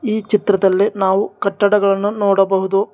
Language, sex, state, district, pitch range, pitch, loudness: Kannada, male, Karnataka, Bangalore, 195-205 Hz, 200 Hz, -16 LUFS